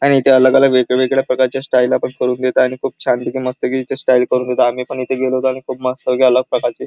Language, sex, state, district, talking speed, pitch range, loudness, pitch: Marathi, male, Maharashtra, Chandrapur, 260 wpm, 125-130 Hz, -15 LUFS, 130 Hz